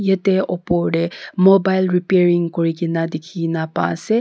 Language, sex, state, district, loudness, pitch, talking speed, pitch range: Nagamese, female, Nagaland, Kohima, -18 LUFS, 175 Hz, 140 wpm, 165-190 Hz